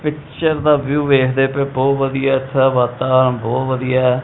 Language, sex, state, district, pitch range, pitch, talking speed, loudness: Punjabi, male, Punjab, Kapurthala, 130-140 Hz, 135 Hz, 200 wpm, -16 LUFS